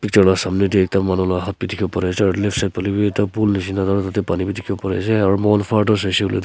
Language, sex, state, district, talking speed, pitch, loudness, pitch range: Nagamese, male, Nagaland, Kohima, 325 wpm, 100 Hz, -18 LUFS, 95-105 Hz